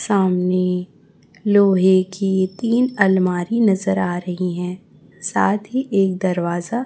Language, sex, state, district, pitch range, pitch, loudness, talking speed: Hindi, female, Chhattisgarh, Raipur, 180-205 Hz, 190 Hz, -19 LUFS, 115 wpm